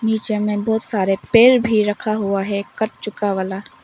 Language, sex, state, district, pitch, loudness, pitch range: Hindi, female, Arunachal Pradesh, Longding, 210 Hz, -18 LUFS, 200-220 Hz